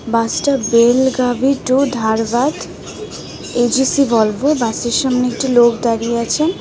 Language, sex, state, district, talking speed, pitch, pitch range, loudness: Bengali, female, Tripura, West Tripura, 120 wpm, 245 Hz, 235-265 Hz, -15 LUFS